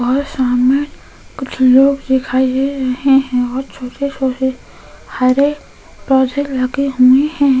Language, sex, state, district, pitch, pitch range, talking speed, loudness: Hindi, female, Goa, North and South Goa, 265 Hz, 255-275 Hz, 120 wpm, -14 LUFS